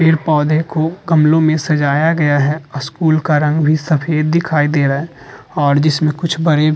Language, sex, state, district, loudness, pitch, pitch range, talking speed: Hindi, male, Uttar Pradesh, Muzaffarnagar, -14 LUFS, 155 Hz, 150-160 Hz, 205 wpm